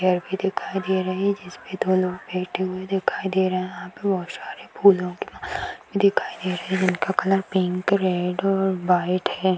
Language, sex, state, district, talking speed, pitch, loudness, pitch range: Hindi, female, Maharashtra, Nagpur, 215 wpm, 185 Hz, -23 LUFS, 185-195 Hz